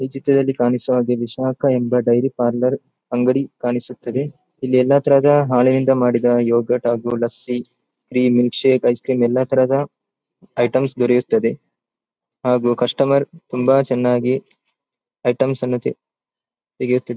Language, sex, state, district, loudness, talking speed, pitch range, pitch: Kannada, male, Karnataka, Dakshina Kannada, -18 LUFS, 110 wpm, 120-135 Hz, 125 Hz